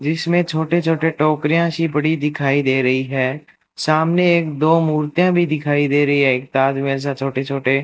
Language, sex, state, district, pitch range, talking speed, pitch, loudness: Hindi, male, Rajasthan, Bikaner, 135-165 Hz, 190 wpm, 150 Hz, -17 LUFS